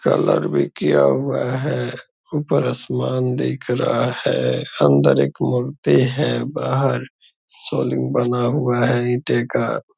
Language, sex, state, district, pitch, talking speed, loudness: Hindi, male, Bihar, Purnia, 100 Hz, 125 wpm, -19 LUFS